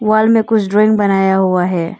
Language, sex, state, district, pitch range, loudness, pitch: Hindi, female, Arunachal Pradesh, Longding, 190-215 Hz, -13 LUFS, 205 Hz